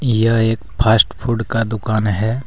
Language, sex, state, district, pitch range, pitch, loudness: Hindi, male, Jharkhand, Deoghar, 110-115 Hz, 110 Hz, -17 LUFS